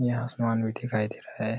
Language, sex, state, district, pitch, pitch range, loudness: Hindi, male, Uttar Pradesh, Ghazipur, 115 Hz, 110-125 Hz, -29 LUFS